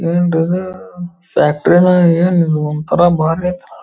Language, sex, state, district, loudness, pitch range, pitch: Kannada, female, Karnataka, Belgaum, -13 LUFS, 165-180 Hz, 175 Hz